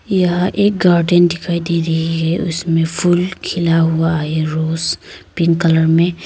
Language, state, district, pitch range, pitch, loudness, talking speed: Hindi, Arunachal Pradesh, Lower Dibang Valley, 165-175 Hz, 170 Hz, -15 LUFS, 155 wpm